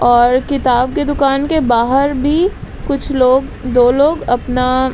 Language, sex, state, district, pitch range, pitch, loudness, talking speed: Hindi, female, Bihar, Patna, 250-285 Hz, 265 Hz, -14 LUFS, 145 wpm